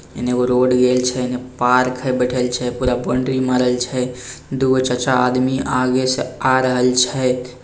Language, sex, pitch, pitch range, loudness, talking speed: Bhojpuri, male, 125 Hz, 125-130 Hz, -18 LUFS, 175 wpm